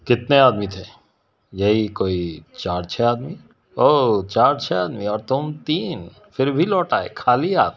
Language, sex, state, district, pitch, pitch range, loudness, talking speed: Hindi, male, Bihar, Patna, 110 Hz, 95-135 Hz, -20 LUFS, 145 wpm